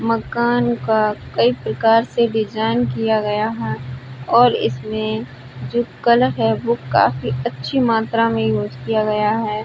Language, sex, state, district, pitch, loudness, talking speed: Hindi, female, Uttar Pradesh, Budaun, 210 Hz, -18 LUFS, 135 wpm